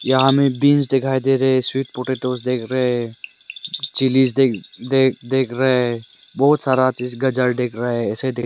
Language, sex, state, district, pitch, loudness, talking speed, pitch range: Hindi, male, Arunachal Pradesh, Lower Dibang Valley, 130 Hz, -18 LUFS, 175 wpm, 125-135 Hz